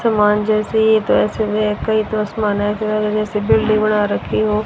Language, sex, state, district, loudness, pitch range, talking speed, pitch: Hindi, female, Haryana, Rohtak, -17 LUFS, 210-215 Hz, 140 wpm, 215 Hz